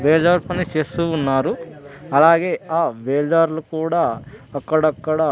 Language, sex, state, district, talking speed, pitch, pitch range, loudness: Telugu, male, Andhra Pradesh, Sri Satya Sai, 115 wpm, 155 Hz, 140-165 Hz, -19 LUFS